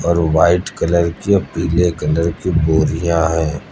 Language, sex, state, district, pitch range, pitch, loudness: Hindi, male, Uttar Pradesh, Lucknow, 80-90 Hz, 85 Hz, -16 LUFS